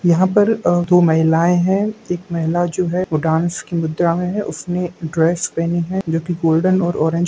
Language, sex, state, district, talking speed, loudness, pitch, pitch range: Hindi, male, Bihar, Sitamarhi, 205 wpm, -17 LUFS, 175 Hz, 165-180 Hz